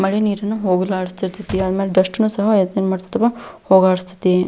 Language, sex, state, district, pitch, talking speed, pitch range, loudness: Kannada, female, Karnataka, Belgaum, 190 Hz, 105 wpm, 185-210 Hz, -18 LUFS